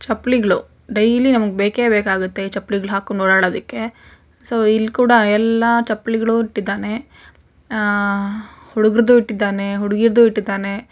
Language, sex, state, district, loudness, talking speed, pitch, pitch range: Kannada, female, Karnataka, Mysore, -17 LUFS, 100 wpm, 215 Hz, 200-230 Hz